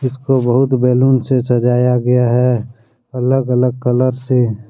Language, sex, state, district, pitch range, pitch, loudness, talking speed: Hindi, male, Jharkhand, Deoghar, 120-130 Hz, 125 Hz, -14 LUFS, 140 wpm